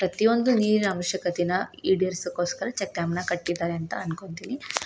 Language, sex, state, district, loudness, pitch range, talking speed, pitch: Kannada, female, Karnataka, Shimoga, -26 LUFS, 175-195 Hz, 85 wpm, 180 Hz